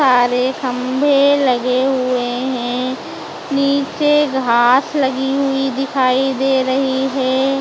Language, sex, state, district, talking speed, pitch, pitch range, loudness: Hindi, female, Maharashtra, Mumbai Suburban, 100 wpm, 265 Hz, 255-275 Hz, -16 LUFS